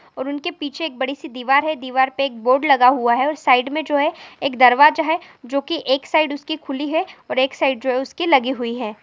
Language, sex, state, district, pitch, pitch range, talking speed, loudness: Hindi, female, Chhattisgarh, Bilaspur, 280 Hz, 260-310 Hz, 265 wpm, -19 LUFS